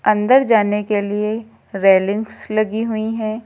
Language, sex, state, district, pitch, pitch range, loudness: Hindi, female, Uttar Pradesh, Lucknow, 215 Hz, 205-220 Hz, -17 LUFS